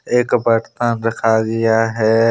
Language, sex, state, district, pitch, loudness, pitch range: Hindi, male, Jharkhand, Deoghar, 115 Hz, -16 LUFS, 110-115 Hz